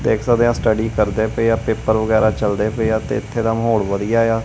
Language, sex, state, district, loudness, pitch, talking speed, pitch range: Punjabi, male, Punjab, Kapurthala, -18 LUFS, 110 Hz, 255 wpm, 110-115 Hz